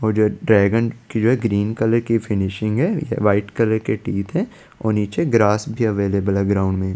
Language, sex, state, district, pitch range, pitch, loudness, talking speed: Hindi, male, Chandigarh, Chandigarh, 100-115 Hz, 110 Hz, -19 LUFS, 200 wpm